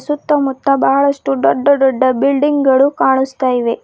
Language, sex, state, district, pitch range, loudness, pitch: Kannada, female, Karnataka, Bidar, 260-280 Hz, -13 LUFS, 270 Hz